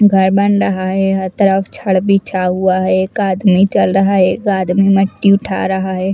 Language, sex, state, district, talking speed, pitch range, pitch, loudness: Hindi, female, Chandigarh, Chandigarh, 205 wpm, 185-195 Hz, 190 Hz, -13 LUFS